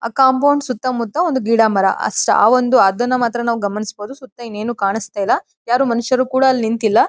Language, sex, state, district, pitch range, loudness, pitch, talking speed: Kannada, female, Karnataka, Mysore, 220-260 Hz, -16 LUFS, 235 Hz, 195 wpm